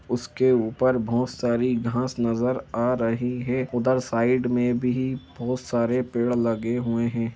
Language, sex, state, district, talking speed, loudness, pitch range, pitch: Hindi, male, Jharkhand, Jamtara, 155 wpm, -24 LUFS, 120-125 Hz, 120 Hz